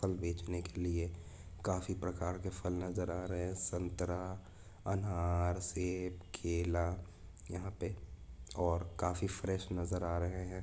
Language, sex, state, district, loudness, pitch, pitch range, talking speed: Hindi, male, Jharkhand, Jamtara, -39 LUFS, 90 Hz, 85-90 Hz, 135 wpm